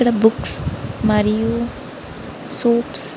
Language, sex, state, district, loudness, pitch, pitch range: Telugu, female, Andhra Pradesh, Srikakulam, -19 LUFS, 220 Hz, 210-235 Hz